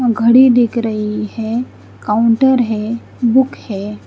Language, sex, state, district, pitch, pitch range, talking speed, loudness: Hindi, female, Chandigarh, Chandigarh, 230 Hz, 215-245 Hz, 120 wpm, -14 LUFS